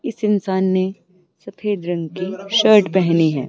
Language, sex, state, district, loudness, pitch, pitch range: Hindi, female, Himachal Pradesh, Shimla, -18 LUFS, 190 Hz, 175-205 Hz